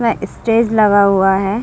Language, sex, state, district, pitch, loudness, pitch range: Hindi, female, Chhattisgarh, Bilaspur, 210 Hz, -13 LUFS, 195-230 Hz